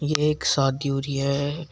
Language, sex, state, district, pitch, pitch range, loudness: Hindi, male, Uttar Pradesh, Shamli, 140 Hz, 140-150 Hz, -24 LUFS